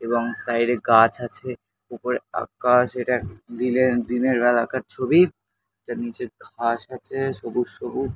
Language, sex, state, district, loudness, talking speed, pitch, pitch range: Bengali, male, West Bengal, North 24 Parganas, -22 LUFS, 130 wpm, 120 Hz, 120-125 Hz